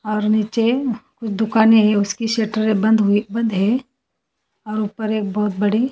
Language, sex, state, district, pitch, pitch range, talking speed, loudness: Hindi, female, Haryana, Charkhi Dadri, 220 Hz, 210-225 Hz, 160 wpm, -18 LUFS